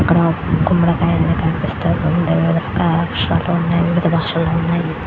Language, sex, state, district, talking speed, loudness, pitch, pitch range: Telugu, female, Andhra Pradesh, Krishna, 105 wpm, -16 LUFS, 165 Hz, 165-170 Hz